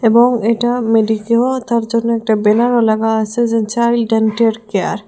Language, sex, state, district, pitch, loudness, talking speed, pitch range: Bengali, female, Assam, Hailakandi, 230 Hz, -14 LUFS, 165 wpm, 220-235 Hz